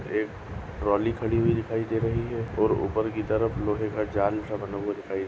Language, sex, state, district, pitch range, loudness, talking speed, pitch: Hindi, female, Goa, North and South Goa, 105-115 Hz, -27 LUFS, 225 wpm, 105 Hz